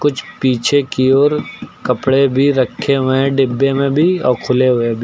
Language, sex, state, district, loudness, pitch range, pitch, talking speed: Hindi, male, Uttar Pradesh, Lucknow, -14 LUFS, 130-140 Hz, 135 Hz, 165 wpm